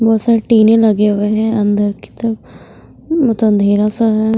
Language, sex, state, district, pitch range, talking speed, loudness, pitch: Hindi, female, Bihar, West Champaran, 210-225 Hz, 180 wpm, -13 LUFS, 220 Hz